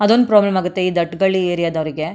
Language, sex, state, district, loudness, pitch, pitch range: Kannada, female, Karnataka, Mysore, -17 LUFS, 180 Hz, 170-195 Hz